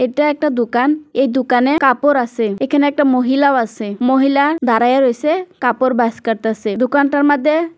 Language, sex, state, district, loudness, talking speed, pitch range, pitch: Bengali, female, West Bengal, Kolkata, -15 LUFS, 155 wpm, 245-290 Hz, 265 Hz